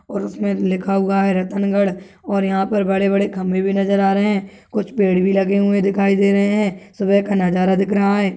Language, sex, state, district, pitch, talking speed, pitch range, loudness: Hindi, female, Rajasthan, Churu, 195 Hz, 230 wpm, 195-200 Hz, -18 LUFS